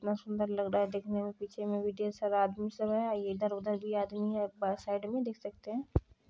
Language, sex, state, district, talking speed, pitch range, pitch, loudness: Maithili, female, Bihar, Kishanganj, 255 wpm, 205-210 Hz, 205 Hz, -35 LUFS